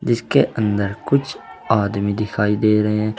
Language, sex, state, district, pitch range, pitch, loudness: Hindi, male, Uttar Pradesh, Saharanpur, 105-110 Hz, 105 Hz, -19 LUFS